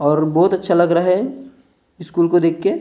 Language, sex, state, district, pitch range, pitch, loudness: Hindi, male, Maharashtra, Gondia, 170-265 Hz, 175 Hz, -16 LUFS